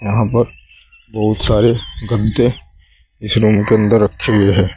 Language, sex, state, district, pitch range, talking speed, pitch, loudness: Hindi, male, Uttar Pradesh, Saharanpur, 100-115 Hz, 150 wpm, 110 Hz, -15 LUFS